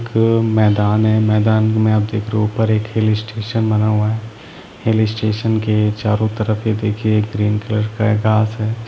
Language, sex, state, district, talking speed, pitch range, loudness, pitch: Hindi, male, Jharkhand, Sahebganj, 180 wpm, 105-110 Hz, -17 LUFS, 110 Hz